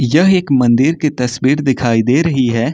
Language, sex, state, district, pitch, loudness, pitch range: Hindi, male, Uttar Pradesh, Lucknow, 130 Hz, -13 LUFS, 125-150 Hz